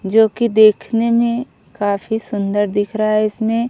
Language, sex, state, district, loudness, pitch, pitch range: Hindi, female, Odisha, Khordha, -16 LUFS, 220 Hz, 205-230 Hz